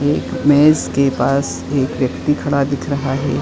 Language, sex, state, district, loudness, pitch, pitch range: Hindi, female, Uttar Pradesh, Etah, -16 LUFS, 140 Hz, 135-145 Hz